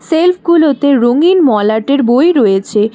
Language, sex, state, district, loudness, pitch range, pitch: Bengali, female, West Bengal, Alipurduar, -10 LUFS, 220-330 Hz, 275 Hz